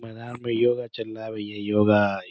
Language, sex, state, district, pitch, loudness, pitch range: Hindi, male, Uttar Pradesh, Budaun, 110 Hz, -24 LUFS, 105-115 Hz